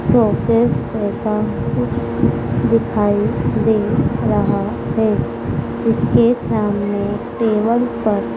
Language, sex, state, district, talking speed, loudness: Hindi, female, Madhya Pradesh, Dhar, 80 wpm, -17 LUFS